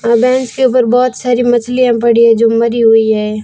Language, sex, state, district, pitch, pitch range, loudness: Hindi, female, Rajasthan, Jaisalmer, 235 Hz, 230-250 Hz, -11 LUFS